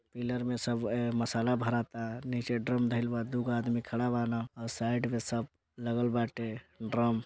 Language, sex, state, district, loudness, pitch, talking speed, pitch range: Bhojpuri, male, Bihar, Gopalganj, -33 LUFS, 120 Hz, 190 wpm, 115-120 Hz